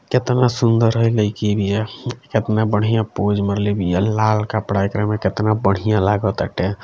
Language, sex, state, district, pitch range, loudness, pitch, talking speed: Bhojpuri, male, Bihar, Gopalganj, 100-115 Hz, -18 LUFS, 105 Hz, 150 wpm